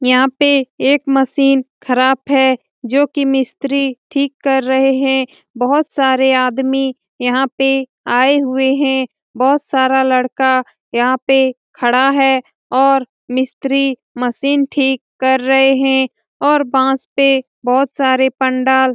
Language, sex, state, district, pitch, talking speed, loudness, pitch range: Hindi, female, Bihar, Lakhisarai, 265 Hz, 135 wpm, -14 LUFS, 260-275 Hz